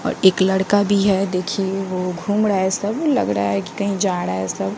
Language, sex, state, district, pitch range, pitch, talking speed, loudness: Hindi, female, Bihar, West Champaran, 180-200 Hz, 190 Hz, 240 wpm, -19 LUFS